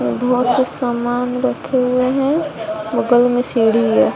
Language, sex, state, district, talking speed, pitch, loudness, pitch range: Hindi, female, Bihar, West Champaran, 145 wpm, 245 Hz, -17 LUFS, 240-255 Hz